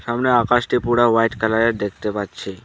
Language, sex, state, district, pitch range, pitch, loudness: Bengali, male, West Bengal, Alipurduar, 105-120 Hz, 115 Hz, -19 LUFS